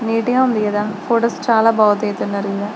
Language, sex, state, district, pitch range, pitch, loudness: Telugu, female, Andhra Pradesh, Srikakulam, 205-230 Hz, 215 Hz, -17 LUFS